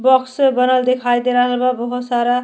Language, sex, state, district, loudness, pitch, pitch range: Bhojpuri, female, Uttar Pradesh, Deoria, -16 LUFS, 250 Hz, 245-255 Hz